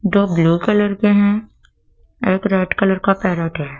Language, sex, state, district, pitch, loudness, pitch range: Hindi, female, Madhya Pradesh, Dhar, 195 Hz, -17 LUFS, 175-205 Hz